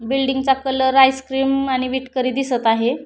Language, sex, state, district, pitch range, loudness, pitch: Marathi, female, Maharashtra, Pune, 255-270 Hz, -18 LUFS, 265 Hz